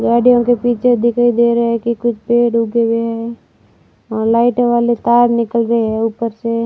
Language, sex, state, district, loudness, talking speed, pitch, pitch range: Hindi, female, Rajasthan, Barmer, -14 LUFS, 200 wpm, 235 Hz, 230-240 Hz